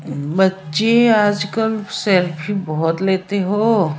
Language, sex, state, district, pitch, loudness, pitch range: Hindi, male, Bihar, Saran, 190 Hz, -17 LUFS, 170-210 Hz